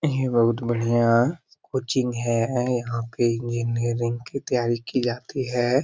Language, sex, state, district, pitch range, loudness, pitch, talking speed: Hindi, male, Bihar, Lakhisarai, 120-130 Hz, -24 LUFS, 120 Hz, 145 wpm